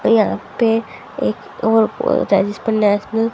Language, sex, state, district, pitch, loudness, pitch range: Hindi, female, Haryana, Charkhi Dadri, 220 Hz, -17 LUFS, 205-225 Hz